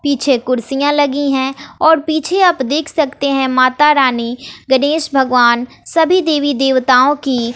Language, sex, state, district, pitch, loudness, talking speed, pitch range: Hindi, female, Bihar, West Champaran, 275 Hz, -13 LUFS, 145 wpm, 260-295 Hz